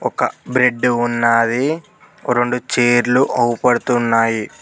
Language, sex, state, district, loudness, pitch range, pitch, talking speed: Telugu, male, Telangana, Mahabubabad, -16 LUFS, 120-125 Hz, 120 Hz, 80 wpm